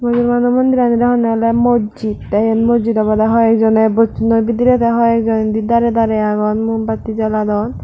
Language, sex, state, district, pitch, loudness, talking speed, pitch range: Chakma, female, Tripura, Dhalai, 225 Hz, -14 LUFS, 160 wpm, 220-235 Hz